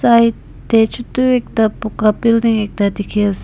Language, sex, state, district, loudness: Nagamese, female, Nagaland, Dimapur, -15 LUFS